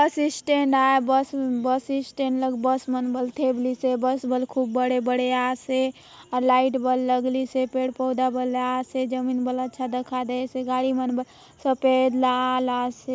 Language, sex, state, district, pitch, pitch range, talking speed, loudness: Halbi, female, Chhattisgarh, Bastar, 255 Hz, 255-260 Hz, 170 wpm, -24 LUFS